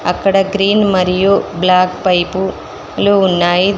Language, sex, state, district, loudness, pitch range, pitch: Telugu, female, Telangana, Mahabubabad, -13 LUFS, 180-195 Hz, 185 Hz